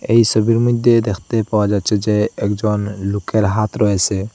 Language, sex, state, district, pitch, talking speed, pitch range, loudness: Bengali, male, Assam, Hailakandi, 105 Hz, 150 wpm, 100-110 Hz, -16 LUFS